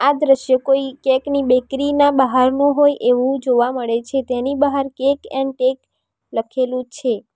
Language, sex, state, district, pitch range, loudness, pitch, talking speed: Gujarati, female, Gujarat, Valsad, 255-275 Hz, -17 LUFS, 265 Hz, 165 wpm